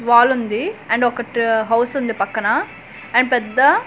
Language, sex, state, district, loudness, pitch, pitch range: Telugu, female, Andhra Pradesh, Manyam, -18 LUFS, 240 Hz, 230-250 Hz